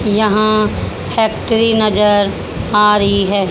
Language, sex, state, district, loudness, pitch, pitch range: Hindi, female, Haryana, Charkhi Dadri, -14 LUFS, 210 Hz, 205-215 Hz